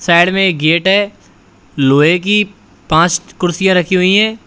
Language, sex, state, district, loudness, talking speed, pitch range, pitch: Hindi, male, Uttar Pradesh, Shamli, -12 LUFS, 160 wpm, 155-195 Hz, 180 Hz